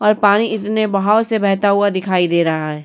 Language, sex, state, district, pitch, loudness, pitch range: Hindi, female, Uttar Pradesh, Muzaffarnagar, 205 Hz, -15 LUFS, 185-215 Hz